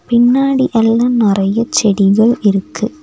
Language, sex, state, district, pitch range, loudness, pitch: Tamil, female, Tamil Nadu, Nilgiris, 205-245 Hz, -12 LUFS, 225 Hz